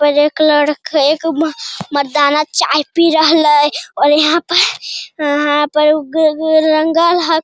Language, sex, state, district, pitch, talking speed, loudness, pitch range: Hindi, male, Bihar, Jamui, 310 Hz, 130 wpm, -13 LUFS, 295-320 Hz